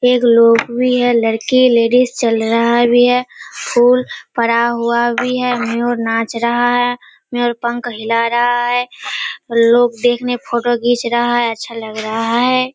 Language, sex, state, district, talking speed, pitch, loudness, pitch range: Hindi, female, Bihar, Kishanganj, 165 wpm, 240 Hz, -14 LUFS, 235-245 Hz